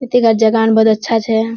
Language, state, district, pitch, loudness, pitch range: Surjapuri, Bihar, Kishanganj, 225 Hz, -13 LUFS, 220-230 Hz